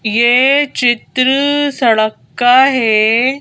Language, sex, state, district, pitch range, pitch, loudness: Hindi, female, Madhya Pradesh, Bhopal, 230-270 Hz, 250 Hz, -12 LUFS